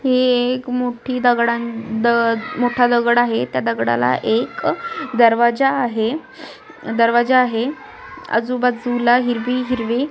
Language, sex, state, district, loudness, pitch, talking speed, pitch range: Marathi, female, Maharashtra, Nagpur, -18 LUFS, 240 Hz, 100 wpm, 230-255 Hz